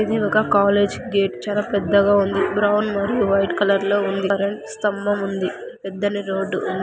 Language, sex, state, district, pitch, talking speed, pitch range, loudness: Telugu, female, Andhra Pradesh, Anantapur, 200 Hz, 165 wpm, 195-205 Hz, -20 LUFS